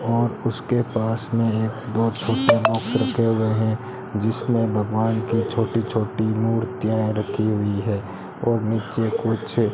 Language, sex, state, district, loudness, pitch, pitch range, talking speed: Hindi, male, Rajasthan, Bikaner, -22 LUFS, 115 Hz, 110-115 Hz, 140 wpm